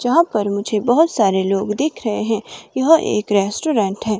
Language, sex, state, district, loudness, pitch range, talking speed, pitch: Hindi, female, Himachal Pradesh, Shimla, -18 LUFS, 200-265 Hz, 185 wpm, 215 Hz